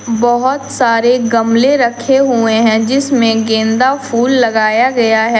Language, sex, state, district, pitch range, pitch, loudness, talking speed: Hindi, female, Jharkhand, Deoghar, 225-260 Hz, 235 Hz, -12 LUFS, 135 wpm